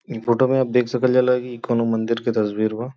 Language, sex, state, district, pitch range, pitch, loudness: Bhojpuri, male, Uttar Pradesh, Gorakhpur, 115-125 Hz, 120 Hz, -20 LUFS